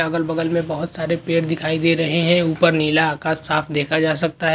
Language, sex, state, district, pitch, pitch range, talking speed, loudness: Hindi, male, Bihar, Begusarai, 160 Hz, 160-165 Hz, 225 wpm, -19 LUFS